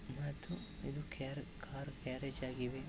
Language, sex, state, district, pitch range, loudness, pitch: Kannada, male, Karnataka, Bellary, 130-145 Hz, -45 LUFS, 135 Hz